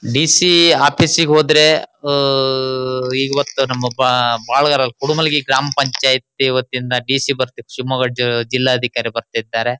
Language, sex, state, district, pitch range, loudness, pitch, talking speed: Kannada, male, Karnataka, Shimoga, 125-145 Hz, -15 LUFS, 130 Hz, 100 wpm